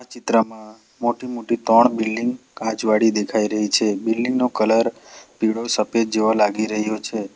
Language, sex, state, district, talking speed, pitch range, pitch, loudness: Gujarati, male, Gujarat, Valsad, 145 wpm, 110-115 Hz, 110 Hz, -20 LUFS